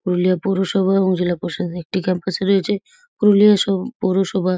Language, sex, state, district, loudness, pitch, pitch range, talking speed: Bengali, female, West Bengal, Purulia, -18 LUFS, 190 Hz, 185-200 Hz, 145 wpm